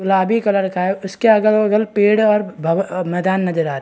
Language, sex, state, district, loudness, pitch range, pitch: Hindi, female, Bihar, East Champaran, -16 LUFS, 180-210 Hz, 195 Hz